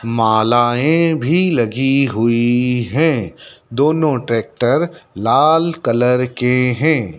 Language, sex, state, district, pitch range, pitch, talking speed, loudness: Hindi, male, Madhya Pradesh, Dhar, 115-155 Hz, 125 Hz, 90 wpm, -15 LUFS